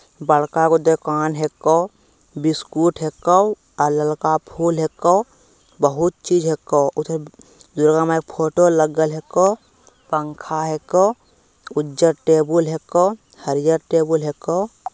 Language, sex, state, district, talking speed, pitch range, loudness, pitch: Hindi, male, Bihar, Begusarai, 115 wpm, 155-170 Hz, -19 LUFS, 160 Hz